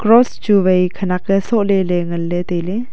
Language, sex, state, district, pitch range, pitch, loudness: Wancho, female, Arunachal Pradesh, Longding, 175-210 Hz, 190 Hz, -16 LUFS